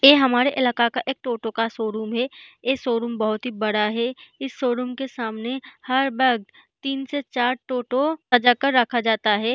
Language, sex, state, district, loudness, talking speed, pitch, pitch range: Hindi, female, Bihar, East Champaran, -22 LUFS, 190 wpm, 245 Hz, 230-265 Hz